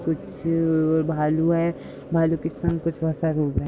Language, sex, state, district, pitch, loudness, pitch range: Hindi, female, Uttar Pradesh, Budaun, 160 Hz, -23 LUFS, 155-165 Hz